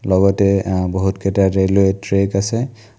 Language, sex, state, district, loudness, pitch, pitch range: Assamese, male, Assam, Kamrup Metropolitan, -17 LUFS, 100 Hz, 95-100 Hz